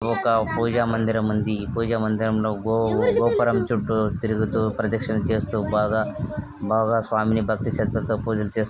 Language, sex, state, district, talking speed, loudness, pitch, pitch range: Telugu, male, Andhra Pradesh, Chittoor, 125 wpm, -23 LUFS, 110 Hz, 110-115 Hz